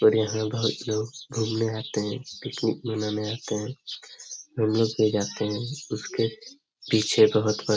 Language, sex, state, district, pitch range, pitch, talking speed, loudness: Hindi, male, Bihar, Jamui, 105-115 Hz, 110 Hz, 155 wpm, -26 LUFS